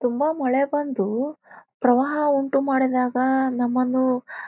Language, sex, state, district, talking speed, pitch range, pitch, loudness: Kannada, female, Karnataka, Bijapur, 105 wpm, 250-280 Hz, 265 Hz, -22 LUFS